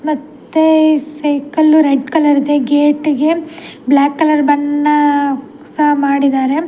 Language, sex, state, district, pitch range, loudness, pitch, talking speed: Kannada, female, Karnataka, Dakshina Kannada, 285-310 Hz, -13 LUFS, 295 Hz, 100 wpm